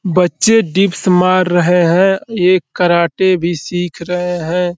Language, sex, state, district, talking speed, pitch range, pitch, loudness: Hindi, male, Uttar Pradesh, Deoria, 150 wpm, 175-185 Hz, 180 Hz, -13 LUFS